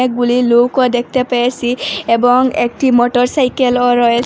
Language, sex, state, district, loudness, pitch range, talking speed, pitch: Bengali, female, Assam, Hailakandi, -13 LUFS, 240-255 Hz, 125 wpm, 245 Hz